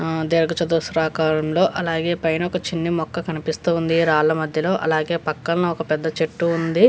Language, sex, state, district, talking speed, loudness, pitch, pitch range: Telugu, female, Andhra Pradesh, Visakhapatnam, 155 wpm, -21 LUFS, 165 Hz, 160-170 Hz